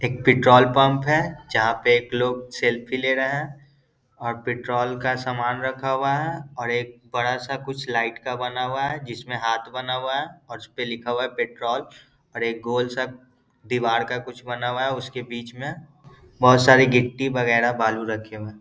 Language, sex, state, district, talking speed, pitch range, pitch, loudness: Hindi, male, Bihar, Gaya, 185 wpm, 120-135 Hz, 125 Hz, -22 LUFS